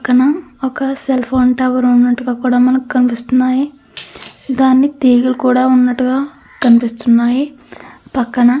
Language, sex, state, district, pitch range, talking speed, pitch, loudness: Telugu, female, Andhra Pradesh, Krishna, 250-265 Hz, 105 wpm, 255 Hz, -13 LUFS